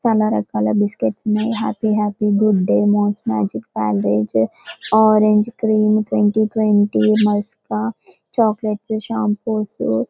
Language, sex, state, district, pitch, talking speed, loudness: Telugu, female, Telangana, Karimnagar, 210 Hz, 115 wpm, -18 LUFS